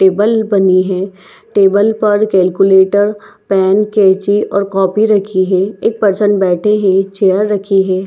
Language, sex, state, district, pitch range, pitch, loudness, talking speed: Hindi, female, Chhattisgarh, Bilaspur, 190-210 Hz, 195 Hz, -12 LUFS, 150 wpm